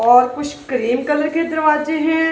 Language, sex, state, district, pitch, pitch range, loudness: Hindi, female, Punjab, Kapurthala, 295 Hz, 255-315 Hz, -17 LUFS